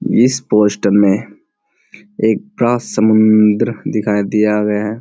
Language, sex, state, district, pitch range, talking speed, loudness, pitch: Hindi, male, Bihar, Kishanganj, 105-110 Hz, 110 wpm, -14 LUFS, 105 Hz